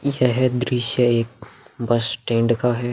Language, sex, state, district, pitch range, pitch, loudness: Hindi, male, Bihar, Vaishali, 115-125 Hz, 120 Hz, -20 LUFS